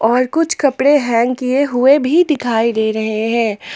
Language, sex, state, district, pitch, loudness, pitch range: Hindi, female, Jharkhand, Palamu, 250 Hz, -14 LUFS, 225-280 Hz